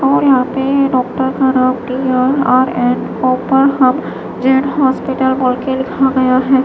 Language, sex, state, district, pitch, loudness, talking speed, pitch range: Hindi, female, Maharashtra, Mumbai Suburban, 260 Hz, -13 LUFS, 110 wpm, 255-270 Hz